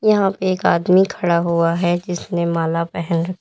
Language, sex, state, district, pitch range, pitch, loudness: Hindi, female, Uttar Pradesh, Lalitpur, 170-185 Hz, 175 Hz, -18 LUFS